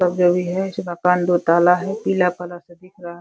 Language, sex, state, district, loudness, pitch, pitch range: Hindi, female, Uttar Pradesh, Deoria, -18 LUFS, 180 Hz, 175-180 Hz